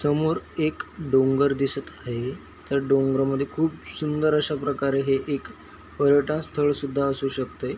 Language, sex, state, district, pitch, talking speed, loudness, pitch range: Marathi, male, Maharashtra, Chandrapur, 140 Hz, 130 wpm, -24 LUFS, 135-150 Hz